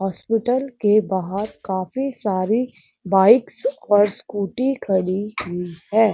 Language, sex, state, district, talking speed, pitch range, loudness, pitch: Hindi, female, Uttar Pradesh, Muzaffarnagar, 105 wpm, 190-235 Hz, -21 LUFS, 205 Hz